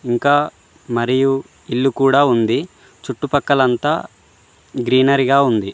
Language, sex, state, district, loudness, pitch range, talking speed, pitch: Telugu, male, Telangana, Mahabubabad, -17 LUFS, 120-140 Hz, 85 wpm, 130 Hz